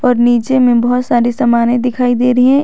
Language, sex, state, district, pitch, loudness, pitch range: Hindi, female, Jharkhand, Garhwa, 245 Hz, -12 LUFS, 240-250 Hz